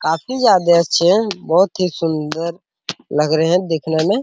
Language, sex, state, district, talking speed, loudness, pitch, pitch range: Hindi, male, Bihar, Araria, 185 wpm, -16 LUFS, 170 Hz, 160-180 Hz